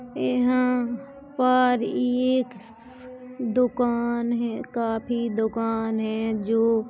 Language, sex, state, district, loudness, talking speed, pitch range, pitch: Hindi, female, Uttar Pradesh, Hamirpur, -24 LUFS, 70 wpm, 225-250 Hz, 240 Hz